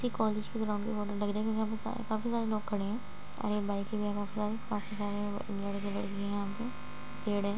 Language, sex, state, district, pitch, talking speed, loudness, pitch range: Hindi, female, Uttar Pradesh, Muzaffarnagar, 210 Hz, 245 wpm, -35 LUFS, 205-220 Hz